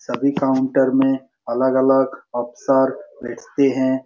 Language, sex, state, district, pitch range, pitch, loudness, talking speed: Hindi, male, Bihar, Supaul, 130-135 Hz, 130 Hz, -19 LUFS, 105 wpm